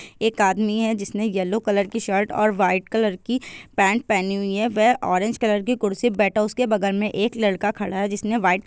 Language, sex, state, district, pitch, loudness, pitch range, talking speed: Hindi, female, Bihar, Jahanabad, 210 Hz, -22 LUFS, 200-220 Hz, 240 wpm